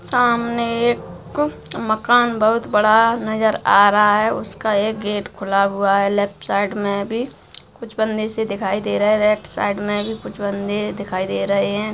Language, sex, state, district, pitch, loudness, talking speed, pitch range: Bhojpuri, female, Bihar, Saran, 210 Hz, -19 LUFS, 180 wpm, 200-225 Hz